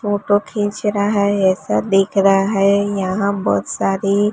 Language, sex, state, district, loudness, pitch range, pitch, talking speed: Hindi, female, Gujarat, Gandhinagar, -17 LUFS, 195-205 Hz, 200 Hz, 150 wpm